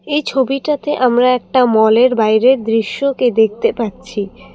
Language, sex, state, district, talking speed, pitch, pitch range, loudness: Bengali, female, Assam, Kamrup Metropolitan, 120 wpm, 250 Hz, 220-265 Hz, -14 LUFS